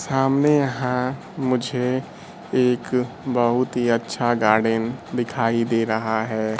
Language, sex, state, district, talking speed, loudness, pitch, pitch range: Hindi, male, Bihar, Kaimur, 110 wpm, -22 LUFS, 125 Hz, 115-130 Hz